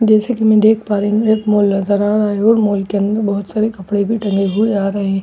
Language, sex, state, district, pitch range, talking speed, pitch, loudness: Hindi, female, Bihar, Katihar, 200-220 Hz, 320 wpm, 205 Hz, -15 LUFS